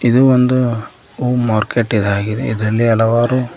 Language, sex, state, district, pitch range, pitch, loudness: Kannada, male, Karnataka, Koppal, 110-125 Hz, 120 Hz, -15 LUFS